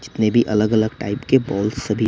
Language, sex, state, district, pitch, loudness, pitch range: Hindi, male, Bihar, West Champaran, 110 Hz, -19 LUFS, 105-120 Hz